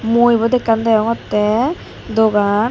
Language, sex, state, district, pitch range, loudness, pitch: Chakma, female, Tripura, Dhalai, 215-235 Hz, -15 LUFS, 225 Hz